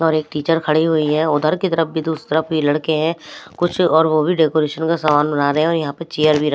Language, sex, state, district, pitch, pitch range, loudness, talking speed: Hindi, female, Maharashtra, Mumbai Suburban, 155 Hz, 150-165 Hz, -17 LUFS, 285 wpm